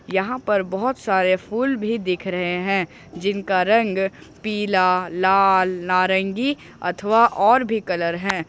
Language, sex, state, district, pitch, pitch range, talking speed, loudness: Hindi, male, Jharkhand, Ranchi, 195 Hz, 185-215 Hz, 135 wpm, -20 LUFS